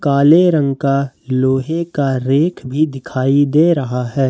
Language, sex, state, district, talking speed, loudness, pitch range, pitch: Hindi, male, Jharkhand, Ranchi, 155 wpm, -15 LUFS, 130-155 Hz, 140 Hz